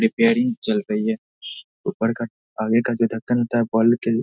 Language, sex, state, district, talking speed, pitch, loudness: Hindi, male, Bihar, Saharsa, 185 wpm, 120 Hz, -21 LUFS